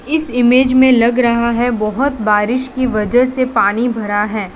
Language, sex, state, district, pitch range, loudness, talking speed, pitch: Hindi, female, Gujarat, Valsad, 215-255 Hz, -14 LUFS, 185 wpm, 240 Hz